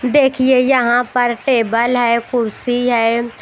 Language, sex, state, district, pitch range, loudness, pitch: Hindi, female, Haryana, Rohtak, 235-255 Hz, -15 LUFS, 245 Hz